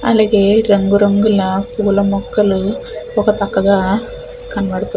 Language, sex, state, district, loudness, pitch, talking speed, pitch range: Telugu, female, Andhra Pradesh, Chittoor, -14 LUFS, 205 Hz, 95 wpm, 200-215 Hz